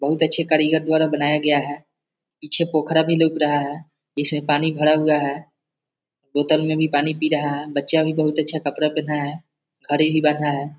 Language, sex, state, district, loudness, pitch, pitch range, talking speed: Hindi, male, Bihar, East Champaran, -20 LUFS, 150 Hz, 145-155 Hz, 200 wpm